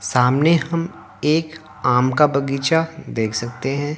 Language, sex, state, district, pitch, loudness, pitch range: Hindi, male, Haryana, Jhajjar, 140 Hz, -19 LUFS, 125-160 Hz